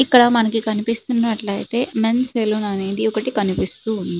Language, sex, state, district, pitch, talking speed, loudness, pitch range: Telugu, female, Andhra Pradesh, Srikakulam, 225 Hz, 115 wpm, -19 LUFS, 215-235 Hz